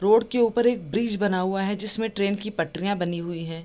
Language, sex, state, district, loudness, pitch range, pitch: Hindi, female, Bihar, East Champaran, -25 LUFS, 175-225 Hz, 200 Hz